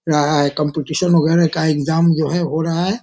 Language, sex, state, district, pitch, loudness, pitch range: Hindi, male, Bihar, Sitamarhi, 160 Hz, -17 LUFS, 150-170 Hz